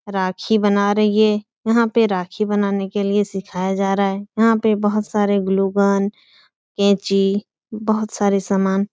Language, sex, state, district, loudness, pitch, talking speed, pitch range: Hindi, female, Uttar Pradesh, Etah, -18 LUFS, 200 Hz, 160 wpm, 195-215 Hz